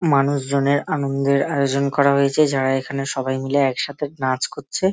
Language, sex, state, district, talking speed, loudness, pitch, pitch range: Bengali, male, West Bengal, Malda, 160 wpm, -20 LUFS, 140 Hz, 135-145 Hz